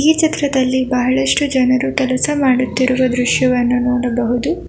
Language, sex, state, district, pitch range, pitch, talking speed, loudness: Kannada, female, Karnataka, Bangalore, 250-270 Hz, 255 Hz, 100 wpm, -15 LUFS